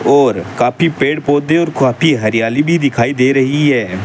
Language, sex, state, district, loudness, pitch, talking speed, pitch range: Hindi, male, Rajasthan, Bikaner, -13 LUFS, 135 Hz, 180 wpm, 120-150 Hz